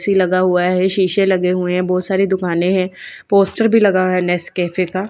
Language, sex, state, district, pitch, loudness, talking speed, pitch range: Hindi, female, Bihar, Patna, 185 Hz, -16 LUFS, 235 wpm, 180-195 Hz